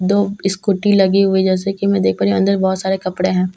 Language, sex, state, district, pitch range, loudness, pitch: Hindi, female, Bihar, Katihar, 185-195 Hz, -16 LUFS, 190 Hz